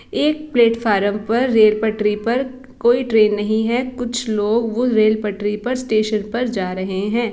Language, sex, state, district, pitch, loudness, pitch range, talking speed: Hindi, female, Bihar, East Champaran, 225 Hz, -18 LUFS, 210-245 Hz, 170 wpm